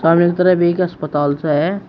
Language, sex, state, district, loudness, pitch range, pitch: Hindi, male, Uttar Pradesh, Shamli, -16 LUFS, 150-180 Hz, 170 Hz